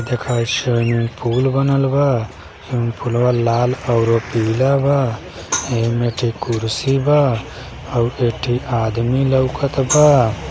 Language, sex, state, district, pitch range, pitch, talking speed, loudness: Bhojpuri, male, Uttar Pradesh, Gorakhpur, 115-135 Hz, 120 Hz, 130 wpm, -17 LUFS